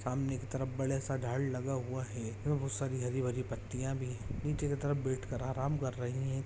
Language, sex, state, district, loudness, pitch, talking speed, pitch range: Hindi, male, Jharkhand, Jamtara, -37 LUFS, 130 Hz, 250 wpm, 125-135 Hz